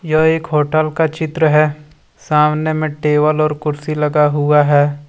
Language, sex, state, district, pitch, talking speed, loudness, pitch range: Hindi, male, Jharkhand, Deoghar, 150 Hz, 165 wpm, -15 LUFS, 150-155 Hz